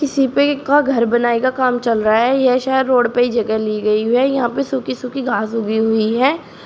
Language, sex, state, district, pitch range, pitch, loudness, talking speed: Hindi, female, Uttar Pradesh, Shamli, 225-265 Hz, 245 Hz, -16 LUFS, 250 wpm